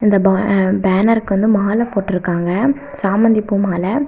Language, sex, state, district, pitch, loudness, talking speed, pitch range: Tamil, female, Tamil Nadu, Kanyakumari, 200 Hz, -15 LUFS, 120 wpm, 190-225 Hz